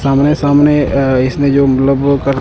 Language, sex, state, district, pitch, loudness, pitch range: Hindi, male, Punjab, Kapurthala, 140 Hz, -11 LUFS, 135-145 Hz